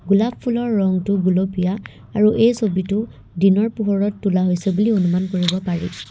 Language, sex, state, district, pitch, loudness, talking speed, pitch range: Assamese, female, Assam, Kamrup Metropolitan, 195 Hz, -19 LUFS, 145 wpm, 185-215 Hz